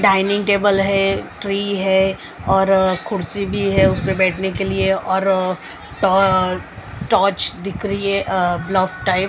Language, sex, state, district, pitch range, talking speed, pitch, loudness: Hindi, female, Maharashtra, Mumbai Suburban, 185-195 Hz, 150 wpm, 190 Hz, -18 LUFS